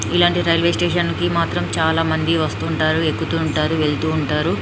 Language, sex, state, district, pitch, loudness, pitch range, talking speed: Telugu, female, Telangana, Nalgonda, 155 Hz, -18 LUFS, 150-160 Hz, 170 wpm